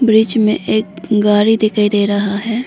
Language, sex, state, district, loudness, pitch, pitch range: Hindi, female, Arunachal Pradesh, Lower Dibang Valley, -14 LUFS, 215 Hz, 205-220 Hz